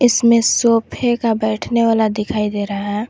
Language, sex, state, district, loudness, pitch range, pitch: Hindi, female, Jharkhand, Garhwa, -16 LUFS, 210-235 Hz, 225 Hz